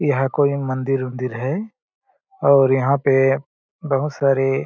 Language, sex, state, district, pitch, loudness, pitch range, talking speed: Hindi, male, Chhattisgarh, Balrampur, 135 Hz, -19 LUFS, 135-140 Hz, 130 wpm